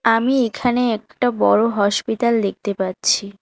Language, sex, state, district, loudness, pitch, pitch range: Bengali, female, West Bengal, Alipurduar, -19 LUFS, 225 Hz, 200-235 Hz